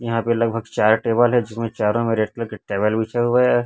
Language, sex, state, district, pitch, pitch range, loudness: Hindi, male, Chhattisgarh, Raipur, 115 Hz, 110-120 Hz, -20 LUFS